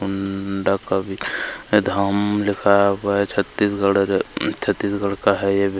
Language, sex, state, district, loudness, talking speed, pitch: Hindi, male, Chhattisgarh, Kabirdham, -20 LUFS, 145 wpm, 100 Hz